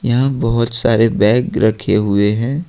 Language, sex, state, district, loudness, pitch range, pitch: Hindi, male, Jharkhand, Ranchi, -14 LUFS, 105-120 Hz, 115 Hz